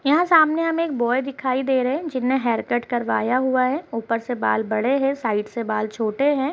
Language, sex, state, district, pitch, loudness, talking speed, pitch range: Hindi, female, Uttar Pradesh, Gorakhpur, 255 Hz, -21 LUFS, 230 wpm, 230-275 Hz